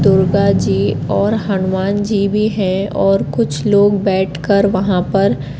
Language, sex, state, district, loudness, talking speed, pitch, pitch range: Hindi, female, Madhya Pradesh, Katni, -15 LUFS, 140 wpm, 195 Hz, 190-200 Hz